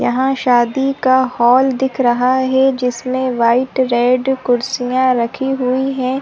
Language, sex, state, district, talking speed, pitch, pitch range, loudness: Hindi, female, Chhattisgarh, Sarguja, 145 wpm, 255 Hz, 245-265 Hz, -15 LUFS